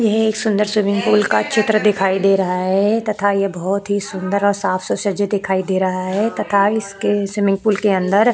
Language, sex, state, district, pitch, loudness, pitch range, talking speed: Hindi, female, Uttar Pradesh, Jalaun, 200 Hz, -17 LUFS, 195-210 Hz, 225 wpm